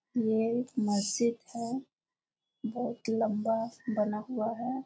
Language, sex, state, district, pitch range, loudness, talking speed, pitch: Maithili, female, Bihar, Muzaffarpur, 220-245 Hz, -32 LUFS, 110 wpm, 230 Hz